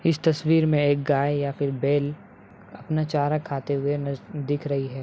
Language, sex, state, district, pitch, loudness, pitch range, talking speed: Hindi, male, Bihar, Bhagalpur, 145 Hz, -24 LUFS, 140-155 Hz, 190 wpm